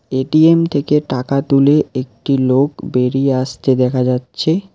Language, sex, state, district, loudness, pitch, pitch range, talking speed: Bengali, male, West Bengal, Alipurduar, -15 LUFS, 135 Hz, 130-150 Hz, 125 wpm